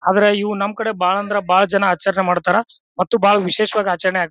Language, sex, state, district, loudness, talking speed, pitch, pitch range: Kannada, male, Karnataka, Bijapur, -17 LUFS, 210 wpm, 200 Hz, 185-205 Hz